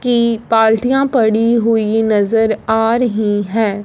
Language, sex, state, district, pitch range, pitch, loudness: Hindi, female, Punjab, Fazilka, 220-235 Hz, 225 Hz, -14 LUFS